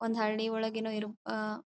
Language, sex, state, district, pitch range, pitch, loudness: Kannada, female, Karnataka, Dharwad, 215-225 Hz, 220 Hz, -34 LUFS